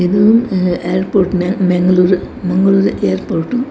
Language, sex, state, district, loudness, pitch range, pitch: Kannada, female, Karnataka, Dakshina Kannada, -14 LUFS, 180-195 Hz, 185 Hz